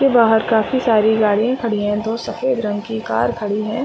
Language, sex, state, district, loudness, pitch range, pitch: Hindi, female, Chhattisgarh, Raigarh, -18 LUFS, 215-235 Hz, 220 Hz